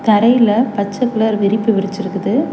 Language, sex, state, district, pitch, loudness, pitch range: Tamil, female, Tamil Nadu, Chennai, 220 Hz, -15 LUFS, 200-235 Hz